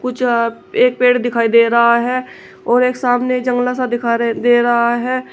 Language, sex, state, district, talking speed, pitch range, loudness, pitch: Hindi, female, Uttar Pradesh, Shamli, 190 wpm, 235-250 Hz, -15 LUFS, 245 Hz